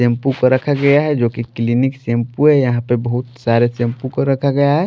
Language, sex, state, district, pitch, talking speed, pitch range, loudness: Hindi, male, Maharashtra, Washim, 125 Hz, 235 wpm, 120-140 Hz, -16 LUFS